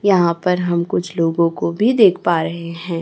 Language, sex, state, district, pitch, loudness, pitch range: Hindi, female, Chhattisgarh, Raipur, 170 Hz, -17 LUFS, 170-180 Hz